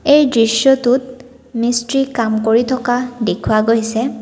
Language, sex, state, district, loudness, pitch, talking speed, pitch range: Assamese, female, Assam, Kamrup Metropolitan, -15 LUFS, 245 Hz, 115 wpm, 230-255 Hz